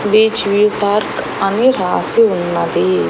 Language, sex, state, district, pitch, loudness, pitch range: Telugu, female, Andhra Pradesh, Annamaya, 210 Hz, -14 LUFS, 205-230 Hz